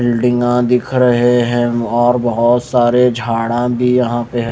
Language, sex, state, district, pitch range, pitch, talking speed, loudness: Hindi, male, Maharashtra, Mumbai Suburban, 120-125 Hz, 120 Hz, 160 wpm, -14 LUFS